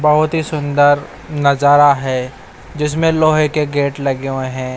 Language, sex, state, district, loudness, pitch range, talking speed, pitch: Hindi, male, Odisha, Nuapada, -15 LUFS, 135-150 Hz, 150 wpm, 145 Hz